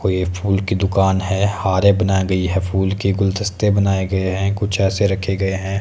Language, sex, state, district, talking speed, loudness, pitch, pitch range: Hindi, male, Himachal Pradesh, Shimla, 215 wpm, -18 LUFS, 95 Hz, 95-100 Hz